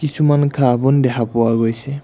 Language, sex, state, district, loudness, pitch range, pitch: Assamese, male, Assam, Kamrup Metropolitan, -16 LUFS, 115-140 Hz, 135 Hz